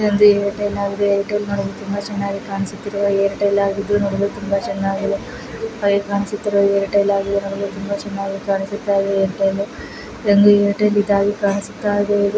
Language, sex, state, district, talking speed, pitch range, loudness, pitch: Kannada, female, Karnataka, Belgaum, 145 wpm, 200-205 Hz, -19 LUFS, 200 Hz